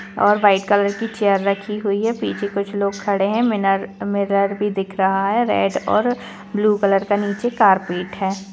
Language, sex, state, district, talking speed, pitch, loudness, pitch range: Hindi, female, Jharkhand, Jamtara, 190 wpm, 200 Hz, -19 LUFS, 195-210 Hz